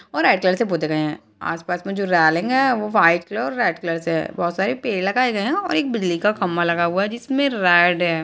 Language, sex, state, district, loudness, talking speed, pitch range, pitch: Hindi, female, Uttarakhand, Tehri Garhwal, -19 LUFS, 270 wpm, 170-220 Hz, 185 Hz